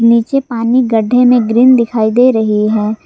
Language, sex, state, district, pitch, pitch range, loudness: Hindi, female, Jharkhand, Garhwa, 235 Hz, 220-245 Hz, -11 LUFS